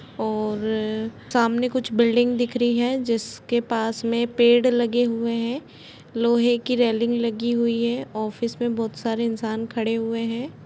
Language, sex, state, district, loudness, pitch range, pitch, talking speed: Hindi, female, Uttar Pradesh, Budaun, -23 LUFS, 225-240 Hz, 235 Hz, 160 wpm